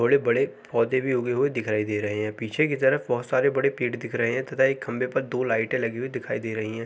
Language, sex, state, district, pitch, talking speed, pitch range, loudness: Hindi, male, Uttar Pradesh, Jalaun, 125 Hz, 280 wpm, 115-130 Hz, -25 LUFS